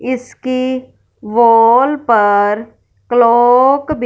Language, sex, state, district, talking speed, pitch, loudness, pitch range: Hindi, female, Punjab, Fazilka, 75 wpm, 245 Hz, -12 LUFS, 230-255 Hz